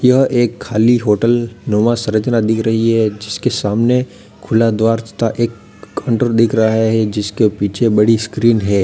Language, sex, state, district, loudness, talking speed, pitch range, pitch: Hindi, male, Uttar Pradesh, Lalitpur, -15 LUFS, 165 wpm, 105-115 Hz, 110 Hz